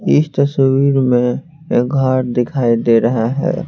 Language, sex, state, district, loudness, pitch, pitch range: Hindi, male, Bihar, Patna, -15 LUFS, 130 Hz, 120-140 Hz